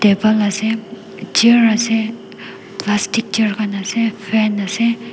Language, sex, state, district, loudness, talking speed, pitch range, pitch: Nagamese, female, Nagaland, Dimapur, -16 LUFS, 115 wpm, 205-225 Hz, 220 Hz